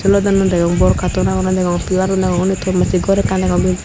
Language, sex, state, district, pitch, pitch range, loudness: Chakma, female, Tripura, Unakoti, 185 Hz, 180-190 Hz, -15 LUFS